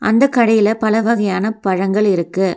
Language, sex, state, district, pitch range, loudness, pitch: Tamil, female, Tamil Nadu, Nilgiris, 190-225 Hz, -15 LUFS, 210 Hz